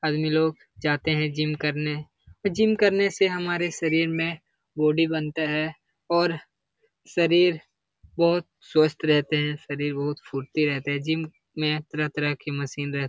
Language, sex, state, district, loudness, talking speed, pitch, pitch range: Hindi, male, Bihar, Jamui, -25 LUFS, 150 wpm, 155 Hz, 150-170 Hz